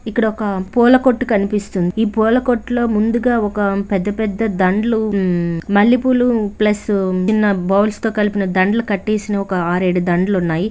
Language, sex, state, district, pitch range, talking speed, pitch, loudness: Telugu, female, Andhra Pradesh, Visakhapatnam, 195-225 Hz, 150 wpm, 210 Hz, -16 LUFS